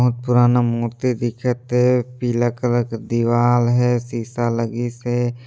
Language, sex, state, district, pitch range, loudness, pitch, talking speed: Chhattisgarhi, male, Chhattisgarh, Sarguja, 120-125 Hz, -19 LUFS, 120 Hz, 130 wpm